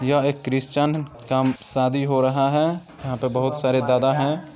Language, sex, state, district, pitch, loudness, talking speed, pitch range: Maithili, male, Bihar, Samastipur, 135 Hz, -22 LUFS, 170 wpm, 130-145 Hz